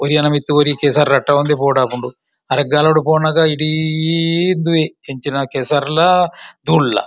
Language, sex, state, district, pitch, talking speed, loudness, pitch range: Tulu, male, Karnataka, Dakshina Kannada, 150 Hz, 110 wpm, -14 LUFS, 145-155 Hz